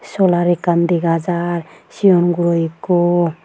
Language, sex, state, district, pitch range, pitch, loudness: Chakma, female, Tripura, Unakoti, 170-175 Hz, 175 Hz, -16 LUFS